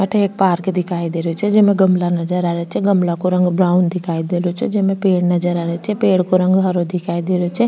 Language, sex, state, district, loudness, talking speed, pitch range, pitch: Rajasthani, female, Rajasthan, Nagaur, -17 LUFS, 275 wpm, 175-190 Hz, 180 Hz